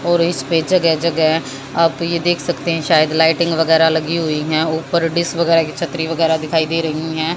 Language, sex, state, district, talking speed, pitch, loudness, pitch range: Hindi, female, Haryana, Jhajjar, 205 wpm, 165 Hz, -16 LUFS, 160-170 Hz